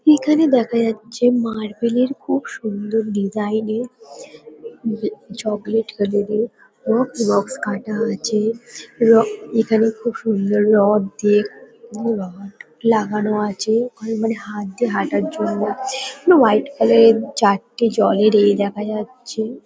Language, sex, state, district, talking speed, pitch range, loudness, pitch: Bengali, female, West Bengal, Kolkata, 125 wpm, 210-235 Hz, -18 LUFS, 220 Hz